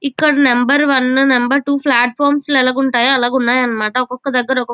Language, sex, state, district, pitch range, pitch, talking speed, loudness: Telugu, female, Andhra Pradesh, Chittoor, 250-280 Hz, 260 Hz, 190 wpm, -13 LUFS